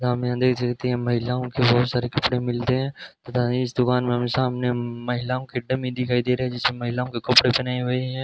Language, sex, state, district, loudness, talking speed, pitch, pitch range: Hindi, male, Rajasthan, Bikaner, -23 LUFS, 235 wpm, 125 Hz, 120-125 Hz